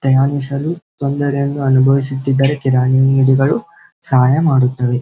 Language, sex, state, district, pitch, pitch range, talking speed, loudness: Kannada, male, Karnataka, Belgaum, 135 Hz, 130-140 Hz, 95 wpm, -15 LUFS